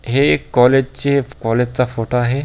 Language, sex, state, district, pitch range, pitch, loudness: Marathi, male, Maharashtra, Pune, 120-135 Hz, 125 Hz, -16 LUFS